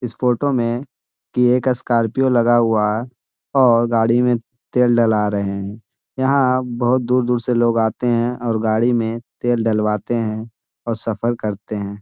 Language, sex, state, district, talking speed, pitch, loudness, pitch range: Hindi, male, Bihar, Gaya, 170 wpm, 120 Hz, -18 LUFS, 110-125 Hz